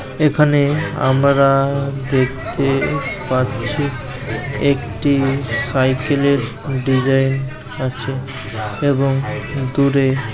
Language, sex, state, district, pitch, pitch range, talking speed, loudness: Bengali, male, West Bengal, Malda, 135 Hz, 130-140 Hz, 65 wpm, -18 LUFS